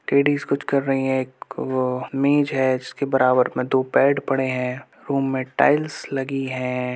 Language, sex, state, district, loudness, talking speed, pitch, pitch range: Hindi, male, Uttar Pradesh, Budaun, -21 LUFS, 180 wpm, 135 Hz, 130-140 Hz